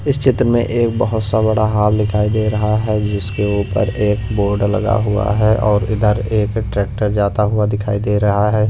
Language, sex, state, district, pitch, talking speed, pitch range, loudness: Hindi, male, Punjab, Pathankot, 105 Hz, 200 wpm, 105-110 Hz, -16 LUFS